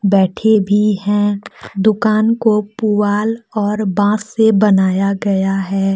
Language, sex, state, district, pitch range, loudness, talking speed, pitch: Hindi, female, Jharkhand, Deoghar, 195-215 Hz, -15 LUFS, 120 wpm, 205 Hz